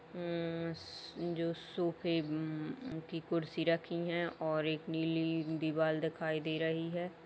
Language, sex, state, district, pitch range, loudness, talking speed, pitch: Hindi, female, Uttar Pradesh, Etah, 160-170 Hz, -37 LUFS, 130 wpm, 165 Hz